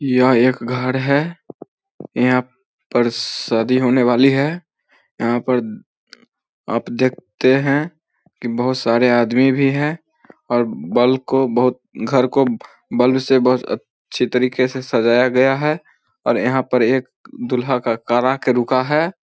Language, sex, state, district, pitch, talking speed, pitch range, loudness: Hindi, male, Bihar, Samastipur, 130 Hz, 150 wpm, 125-135 Hz, -17 LUFS